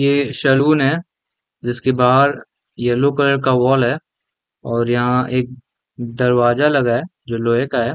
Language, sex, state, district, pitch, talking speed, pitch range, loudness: Hindi, male, Jharkhand, Jamtara, 125 Hz, 150 wpm, 120-140 Hz, -17 LUFS